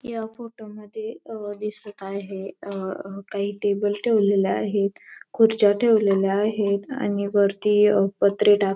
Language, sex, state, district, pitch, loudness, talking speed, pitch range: Marathi, female, Maharashtra, Dhule, 205 Hz, -22 LUFS, 145 wpm, 200-210 Hz